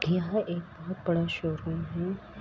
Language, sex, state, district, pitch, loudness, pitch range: Hindi, female, Uttar Pradesh, Etah, 175 Hz, -31 LUFS, 165-180 Hz